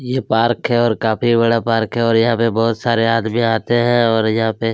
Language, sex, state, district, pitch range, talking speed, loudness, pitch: Hindi, male, Chhattisgarh, Kabirdham, 115-120 Hz, 240 wpm, -16 LUFS, 115 Hz